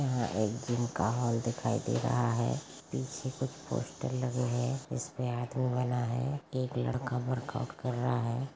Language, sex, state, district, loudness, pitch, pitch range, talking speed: Hindi, female, Chhattisgarh, Rajnandgaon, -33 LUFS, 125 Hz, 120-130 Hz, 175 wpm